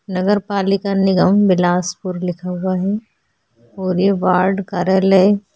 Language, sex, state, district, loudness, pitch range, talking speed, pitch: Hindi, female, Chhattisgarh, Korba, -17 LUFS, 180-195 Hz, 120 wpm, 190 Hz